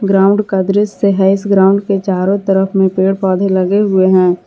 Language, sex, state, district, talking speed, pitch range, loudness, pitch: Hindi, female, Jharkhand, Garhwa, 200 wpm, 190-200 Hz, -12 LUFS, 195 Hz